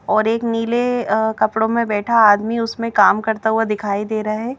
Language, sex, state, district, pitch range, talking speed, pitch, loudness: Hindi, female, Madhya Pradesh, Bhopal, 215-230 Hz, 210 wpm, 220 Hz, -17 LUFS